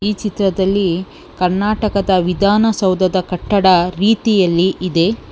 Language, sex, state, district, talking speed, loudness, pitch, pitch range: Kannada, female, Karnataka, Bangalore, 80 wpm, -15 LUFS, 190 Hz, 185-205 Hz